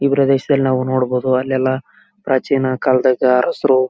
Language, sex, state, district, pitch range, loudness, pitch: Kannada, male, Karnataka, Bellary, 130-135 Hz, -16 LUFS, 130 Hz